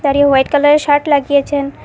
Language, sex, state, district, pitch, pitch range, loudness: Bengali, female, Assam, Hailakandi, 285 Hz, 280-290 Hz, -12 LUFS